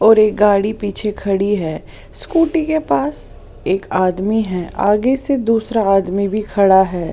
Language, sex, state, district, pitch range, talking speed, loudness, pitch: Hindi, female, Odisha, Sambalpur, 195-225 Hz, 160 wpm, -16 LUFS, 205 Hz